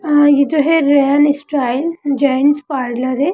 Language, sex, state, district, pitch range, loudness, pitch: Hindi, male, Bihar, Gaya, 275-295 Hz, -14 LUFS, 285 Hz